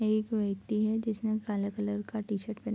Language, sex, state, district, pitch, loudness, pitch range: Hindi, female, Bihar, Bhagalpur, 215 Hz, -32 LUFS, 205-220 Hz